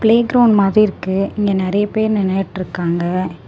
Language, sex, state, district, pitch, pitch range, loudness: Tamil, female, Tamil Nadu, Namakkal, 195 Hz, 185-215 Hz, -16 LUFS